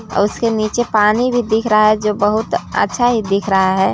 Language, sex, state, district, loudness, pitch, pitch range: Hindi, female, Chhattisgarh, Balrampur, -15 LUFS, 215 Hz, 205-230 Hz